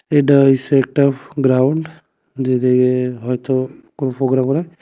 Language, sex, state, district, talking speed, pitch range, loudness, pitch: Bengali, male, Tripura, West Tripura, 100 wpm, 130-140 Hz, -16 LUFS, 135 Hz